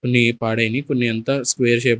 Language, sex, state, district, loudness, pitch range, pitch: Telugu, male, Andhra Pradesh, Sri Satya Sai, -19 LUFS, 115-130 Hz, 120 Hz